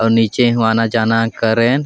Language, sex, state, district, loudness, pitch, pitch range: Sadri, male, Chhattisgarh, Jashpur, -15 LUFS, 115 Hz, 115-120 Hz